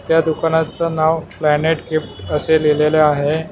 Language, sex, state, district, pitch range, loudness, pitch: Marathi, male, Maharashtra, Mumbai Suburban, 150-160 Hz, -17 LUFS, 155 Hz